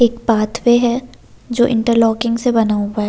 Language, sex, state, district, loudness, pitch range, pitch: Hindi, female, Delhi, New Delhi, -15 LUFS, 225-240 Hz, 235 Hz